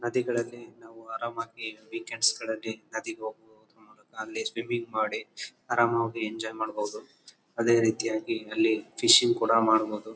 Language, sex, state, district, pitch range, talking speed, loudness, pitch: Kannada, male, Karnataka, Bellary, 110-115 Hz, 105 wpm, -27 LUFS, 110 Hz